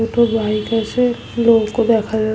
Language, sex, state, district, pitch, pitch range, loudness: Bengali, female, West Bengal, Malda, 225 Hz, 220-235 Hz, -16 LUFS